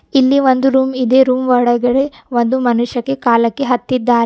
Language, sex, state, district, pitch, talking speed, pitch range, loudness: Kannada, female, Karnataka, Bidar, 255 Hz, 170 wpm, 240-265 Hz, -14 LUFS